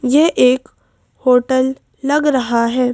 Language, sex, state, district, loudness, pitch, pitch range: Hindi, female, Madhya Pradesh, Bhopal, -15 LUFS, 260 Hz, 250-280 Hz